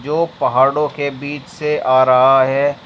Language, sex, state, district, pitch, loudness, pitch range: Hindi, male, Uttar Pradesh, Shamli, 140 Hz, -15 LUFS, 130-150 Hz